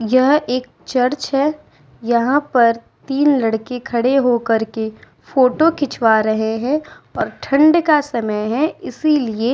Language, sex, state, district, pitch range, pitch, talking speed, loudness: Hindi, female, Uttar Pradesh, Muzaffarnagar, 230-290 Hz, 255 Hz, 140 wpm, -17 LUFS